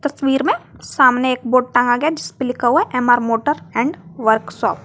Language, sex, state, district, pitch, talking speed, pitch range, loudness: Hindi, female, Jharkhand, Garhwa, 255 Hz, 220 wpm, 245-295 Hz, -17 LUFS